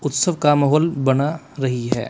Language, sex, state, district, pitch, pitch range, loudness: Hindi, male, Punjab, Kapurthala, 145 Hz, 135-155 Hz, -19 LUFS